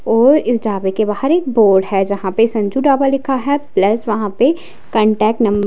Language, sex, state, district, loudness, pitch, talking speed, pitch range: Hindi, female, Himachal Pradesh, Shimla, -15 LUFS, 225 Hz, 210 wpm, 205-270 Hz